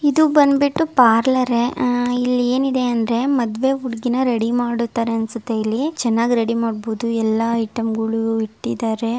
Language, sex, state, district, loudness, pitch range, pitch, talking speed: Kannada, female, Karnataka, Raichur, -19 LUFS, 225-255 Hz, 235 Hz, 130 wpm